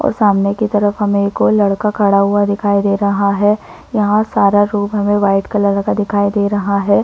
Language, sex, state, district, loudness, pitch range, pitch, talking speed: Hindi, female, Chhattisgarh, Bilaspur, -14 LUFS, 200-205 Hz, 205 Hz, 215 wpm